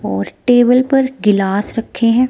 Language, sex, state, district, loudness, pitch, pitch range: Hindi, female, Himachal Pradesh, Shimla, -14 LUFS, 230 Hz, 200-250 Hz